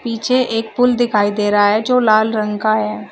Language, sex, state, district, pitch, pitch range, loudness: Hindi, female, Uttar Pradesh, Shamli, 220 Hz, 210-240 Hz, -15 LUFS